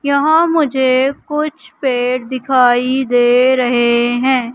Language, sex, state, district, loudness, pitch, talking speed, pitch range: Hindi, female, Madhya Pradesh, Katni, -14 LUFS, 260 Hz, 105 wpm, 245-280 Hz